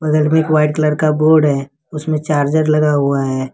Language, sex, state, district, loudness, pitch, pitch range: Hindi, male, Jharkhand, Ranchi, -14 LUFS, 150 Hz, 145-155 Hz